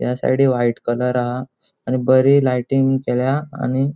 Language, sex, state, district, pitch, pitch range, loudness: Konkani, male, Goa, North and South Goa, 130 Hz, 125-135 Hz, -18 LUFS